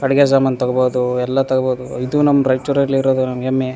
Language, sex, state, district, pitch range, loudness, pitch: Kannada, male, Karnataka, Raichur, 130-135 Hz, -16 LUFS, 130 Hz